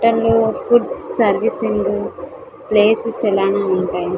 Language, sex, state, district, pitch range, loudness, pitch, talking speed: Telugu, female, Andhra Pradesh, Visakhapatnam, 195-230 Hz, -17 LUFS, 220 Hz, 100 wpm